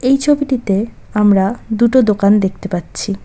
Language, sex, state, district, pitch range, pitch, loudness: Bengali, female, West Bengal, Cooch Behar, 195-250 Hz, 210 Hz, -15 LUFS